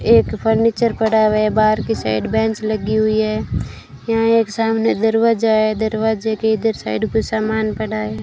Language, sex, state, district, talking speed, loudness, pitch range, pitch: Hindi, female, Rajasthan, Bikaner, 180 wpm, -17 LUFS, 215-225 Hz, 220 Hz